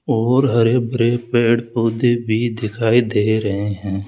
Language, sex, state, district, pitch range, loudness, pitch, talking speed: Hindi, male, Rajasthan, Jaipur, 110-120 Hz, -17 LUFS, 115 Hz, 145 wpm